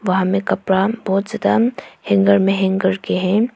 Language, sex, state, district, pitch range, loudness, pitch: Hindi, female, Arunachal Pradesh, Papum Pare, 190-215 Hz, -17 LUFS, 190 Hz